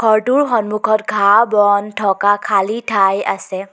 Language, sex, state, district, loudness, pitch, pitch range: Assamese, female, Assam, Kamrup Metropolitan, -15 LUFS, 210 Hz, 200-220 Hz